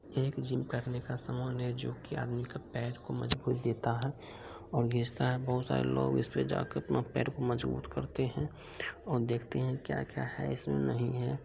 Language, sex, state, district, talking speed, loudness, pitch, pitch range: Angika, male, Bihar, Begusarai, 180 wpm, -35 LUFS, 120 Hz, 110-125 Hz